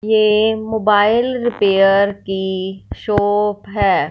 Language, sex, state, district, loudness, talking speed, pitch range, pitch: Hindi, female, Punjab, Fazilka, -16 LUFS, 90 wpm, 195-220 Hz, 210 Hz